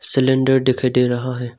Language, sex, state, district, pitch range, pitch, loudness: Hindi, male, Arunachal Pradesh, Longding, 125-130 Hz, 130 Hz, -16 LUFS